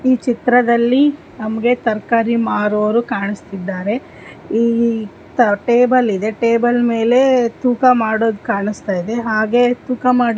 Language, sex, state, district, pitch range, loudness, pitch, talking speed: Kannada, female, Karnataka, Dharwad, 215-245 Hz, -16 LUFS, 235 Hz, 120 wpm